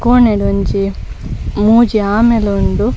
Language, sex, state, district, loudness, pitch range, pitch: Tulu, female, Karnataka, Dakshina Kannada, -13 LUFS, 200-235 Hz, 215 Hz